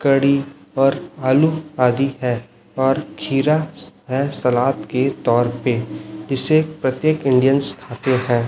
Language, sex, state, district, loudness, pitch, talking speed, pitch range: Hindi, male, Chhattisgarh, Raipur, -18 LUFS, 130 Hz, 120 wpm, 125-140 Hz